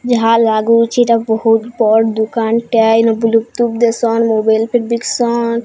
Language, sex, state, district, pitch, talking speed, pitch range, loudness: Odia, female, Odisha, Sambalpur, 230 Hz, 140 wpm, 225-235 Hz, -13 LUFS